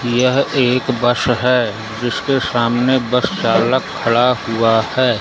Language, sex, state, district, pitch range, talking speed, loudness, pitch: Hindi, male, Madhya Pradesh, Umaria, 115-130 Hz, 125 wpm, -16 LUFS, 125 Hz